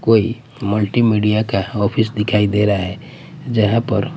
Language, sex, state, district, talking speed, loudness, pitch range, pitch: Hindi, male, Bihar, Patna, 160 wpm, -17 LUFS, 105-115 Hz, 105 Hz